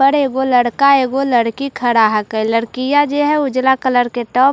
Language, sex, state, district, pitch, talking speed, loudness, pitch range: Hindi, female, Bihar, Katihar, 260 Hz, 225 wpm, -15 LUFS, 240-275 Hz